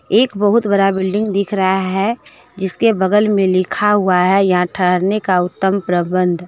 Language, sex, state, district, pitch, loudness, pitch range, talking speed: Hindi, female, Jharkhand, Deoghar, 195 Hz, -15 LUFS, 185-205 Hz, 175 wpm